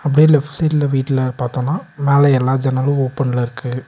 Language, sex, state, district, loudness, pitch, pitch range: Tamil, male, Tamil Nadu, Nilgiris, -16 LUFS, 135 Hz, 130-145 Hz